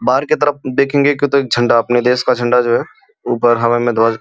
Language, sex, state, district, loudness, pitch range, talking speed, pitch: Hindi, male, Uttar Pradesh, Gorakhpur, -14 LUFS, 120-140 Hz, 255 wpm, 125 Hz